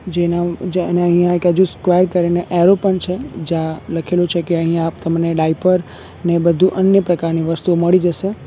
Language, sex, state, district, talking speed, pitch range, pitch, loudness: Gujarati, male, Gujarat, Valsad, 185 wpm, 165-180 Hz, 175 Hz, -16 LUFS